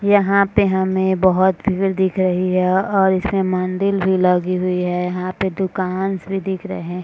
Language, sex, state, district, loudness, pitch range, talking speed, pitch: Hindi, female, Bihar, Madhepura, -18 LUFS, 185-195 Hz, 205 wpm, 190 Hz